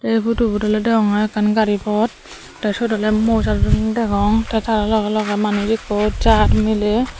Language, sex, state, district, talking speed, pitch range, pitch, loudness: Chakma, female, Tripura, Dhalai, 175 wpm, 210-225 Hz, 215 Hz, -17 LUFS